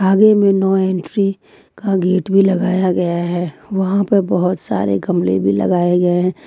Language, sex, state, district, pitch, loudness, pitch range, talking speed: Hindi, female, Jharkhand, Ranchi, 185 Hz, -16 LUFS, 175-195 Hz, 175 wpm